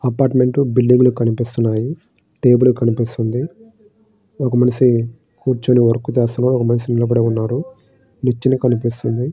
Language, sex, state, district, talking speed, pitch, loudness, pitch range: Telugu, male, Andhra Pradesh, Srikakulam, 115 wpm, 125 Hz, -16 LUFS, 120-130 Hz